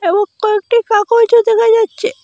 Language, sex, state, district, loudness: Bengali, female, Assam, Hailakandi, -12 LUFS